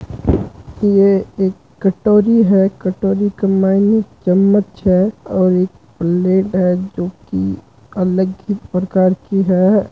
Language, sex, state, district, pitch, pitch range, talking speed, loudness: Marwari, male, Rajasthan, Churu, 190 Hz, 185-200 Hz, 110 wpm, -15 LUFS